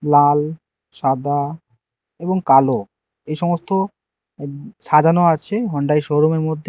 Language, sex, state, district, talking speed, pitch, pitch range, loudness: Bengali, male, Karnataka, Bangalore, 110 wpm, 150 Hz, 145-170 Hz, -18 LUFS